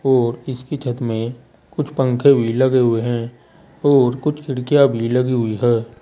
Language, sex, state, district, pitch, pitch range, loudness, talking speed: Hindi, male, Uttar Pradesh, Saharanpur, 125 Hz, 120-135 Hz, -18 LUFS, 170 wpm